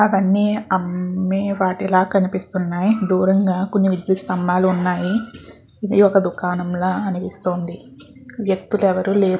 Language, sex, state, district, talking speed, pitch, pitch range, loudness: Telugu, female, Andhra Pradesh, Guntur, 120 wpm, 185 Hz, 180-195 Hz, -19 LUFS